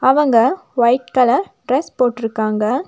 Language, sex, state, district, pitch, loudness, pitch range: Tamil, female, Tamil Nadu, Nilgiris, 255 Hz, -16 LUFS, 230-265 Hz